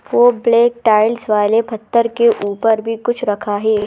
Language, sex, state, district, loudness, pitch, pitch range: Hindi, female, Madhya Pradesh, Bhopal, -15 LUFS, 225 Hz, 210-235 Hz